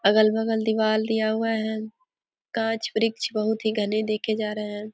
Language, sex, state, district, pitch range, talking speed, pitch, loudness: Hindi, female, Jharkhand, Sahebganj, 215-225 Hz, 180 wpm, 220 Hz, -25 LUFS